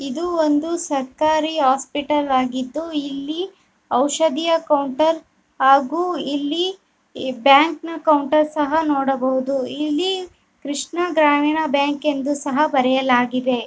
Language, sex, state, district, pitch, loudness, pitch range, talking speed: Kannada, female, Karnataka, Bellary, 295 Hz, -19 LUFS, 275-315 Hz, 95 wpm